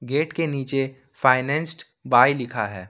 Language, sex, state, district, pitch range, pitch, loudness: Hindi, male, Jharkhand, Ranchi, 125-150 Hz, 135 Hz, -22 LUFS